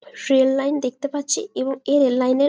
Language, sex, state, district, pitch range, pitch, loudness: Bengali, female, West Bengal, Jalpaiguri, 265-285 Hz, 275 Hz, -20 LUFS